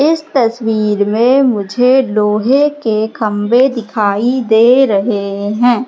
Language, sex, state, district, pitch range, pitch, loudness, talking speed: Hindi, female, Madhya Pradesh, Katni, 210-255 Hz, 230 Hz, -12 LUFS, 110 wpm